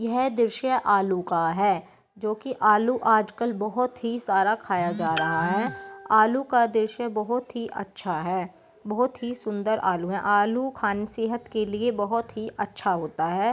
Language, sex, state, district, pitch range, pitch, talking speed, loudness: Hindi, female, Bihar, Begusarai, 195-235 Hz, 215 Hz, 170 wpm, -25 LUFS